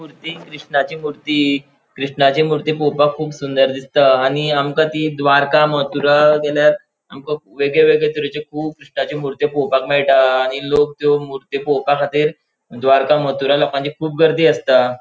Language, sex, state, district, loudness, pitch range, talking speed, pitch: Konkani, male, Goa, North and South Goa, -16 LUFS, 140-150 Hz, 140 wpm, 145 Hz